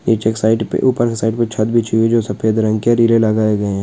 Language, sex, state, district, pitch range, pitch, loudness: Hindi, male, West Bengal, Dakshin Dinajpur, 110-115 Hz, 110 Hz, -15 LUFS